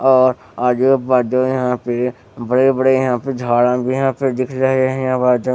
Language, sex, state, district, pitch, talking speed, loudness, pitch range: Hindi, male, Bihar, West Champaran, 130 Hz, 195 wpm, -16 LUFS, 125-130 Hz